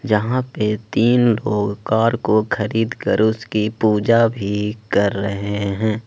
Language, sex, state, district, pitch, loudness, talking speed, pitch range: Hindi, male, Jharkhand, Ranchi, 110 Hz, -19 LUFS, 140 wpm, 105-115 Hz